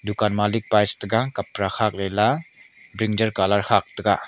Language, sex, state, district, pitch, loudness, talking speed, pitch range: Wancho, male, Arunachal Pradesh, Longding, 105 Hz, -22 LUFS, 125 wpm, 100-110 Hz